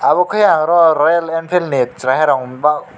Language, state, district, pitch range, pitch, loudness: Kokborok, Tripura, West Tripura, 135-175 Hz, 165 Hz, -14 LUFS